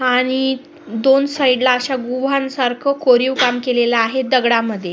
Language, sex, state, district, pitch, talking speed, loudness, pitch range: Marathi, female, Maharashtra, Sindhudurg, 255 Hz, 135 wpm, -16 LUFS, 245-265 Hz